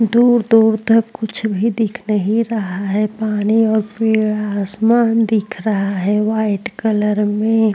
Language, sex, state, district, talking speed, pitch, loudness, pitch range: Hindi, female, Maharashtra, Chandrapur, 145 wpm, 220 Hz, -16 LUFS, 210-225 Hz